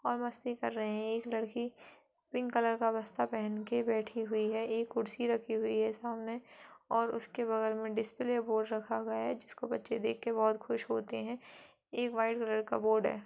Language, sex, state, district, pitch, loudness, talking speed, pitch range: Hindi, female, Uttar Pradesh, Jalaun, 225 Hz, -35 LUFS, 210 wpm, 220-235 Hz